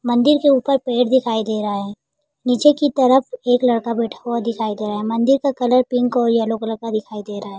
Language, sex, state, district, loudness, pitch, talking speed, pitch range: Hindi, female, Uttar Pradesh, Jalaun, -18 LUFS, 240 Hz, 245 wpm, 220-255 Hz